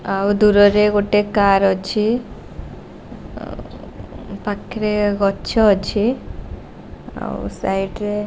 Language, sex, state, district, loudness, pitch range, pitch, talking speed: Odia, female, Odisha, Khordha, -18 LUFS, 200-210 Hz, 205 Hz, 80 wpm